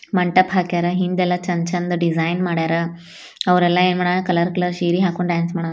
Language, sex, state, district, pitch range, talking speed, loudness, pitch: Kannada, female, Karnataka, Bijapur, 170-180 Hz, 165 wpm, -19 LUFS, 180 Hz